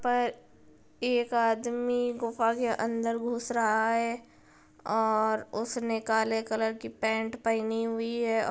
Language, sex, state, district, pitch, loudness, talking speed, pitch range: Hindi, female, Bihar, Gopalganj, 230 Hz, -29 LUFS, 135 wpm, 220-235 Hz